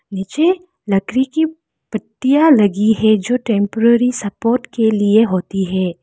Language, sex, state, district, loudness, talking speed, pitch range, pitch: Hindi, female, Arunachal Pradesh, Lower Dibang Valley, -15 LUFS, 130 wpm, 205-255 Hz, 220 Hz